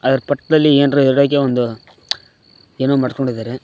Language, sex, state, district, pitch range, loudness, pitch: Kannada, male, Karnataka, Koppal, 125-140 Hz, -16 LUFS, 135 Hz